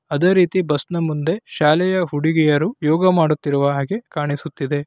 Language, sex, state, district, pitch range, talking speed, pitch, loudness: Kannada, male, Karnataka, Raichur, 145-175 Hz, 125 wpm, 155 Hz, -18 LUFS